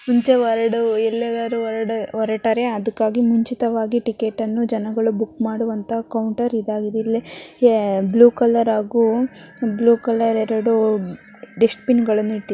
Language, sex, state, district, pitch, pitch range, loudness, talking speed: Kannada, female, Karnataka, Mysore, 225 Hz, 220-235 Hz, -19 LUFS, 125 wpm